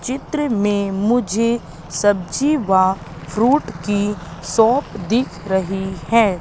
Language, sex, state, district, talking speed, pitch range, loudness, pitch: Hindi, female, Madhya Pradesh, Katni, 105 wpm, 190-235 Hz, -19 LUFS, 205 Hz